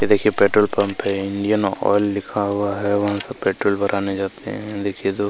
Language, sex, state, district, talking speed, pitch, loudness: Hindi, male, Chhattisgarh, Kabirdham, 215 wpm, 100 Hz, -20 LUFS